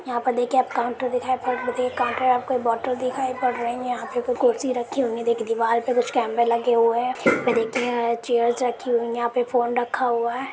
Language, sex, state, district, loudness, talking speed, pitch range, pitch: Hindi, female, Jharkhand, Jamtara, -23 LUFS, 235 wpm, 235-255 Hz, 245 Hz